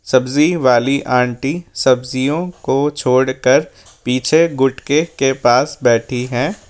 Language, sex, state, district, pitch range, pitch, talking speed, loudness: Hindi, male, Rajasthan, Jaipur, 125-145 Hz, 130 Hz, 105 wpm, -15 LUFS